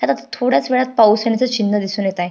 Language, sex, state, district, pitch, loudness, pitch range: Marathi, female, Maharashtra, Pune, 225 Hz, -16 LUFS, 205-250 Hz